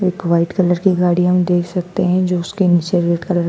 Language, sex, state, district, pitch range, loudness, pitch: Hindi, female, Madhya Pradesh, Dhar, 175-180 Hz, -16 LUFS, 180 Hz